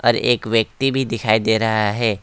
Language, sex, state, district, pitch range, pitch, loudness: Hindi, male, West Bengal, Alipurduar, 110-120 Hz, 115 Hz, -18 LUFS